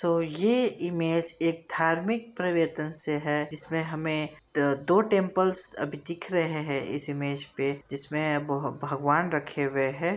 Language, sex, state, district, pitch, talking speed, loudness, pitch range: Hindi, female, Bihar, Sitamarhi, 155 Hz, 155 wpm, -27 LUFS, 145-170 Hz